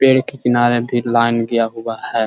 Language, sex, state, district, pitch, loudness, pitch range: Hindi, male, Bihar, Jahanabad, 120 Hz, -17 LUFS, 115-120 Hz